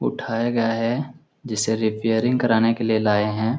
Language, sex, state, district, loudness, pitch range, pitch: Hindi, male, Bihar, Lakhisarai, -21 LUFS, 110-120 Hz, 115 Hz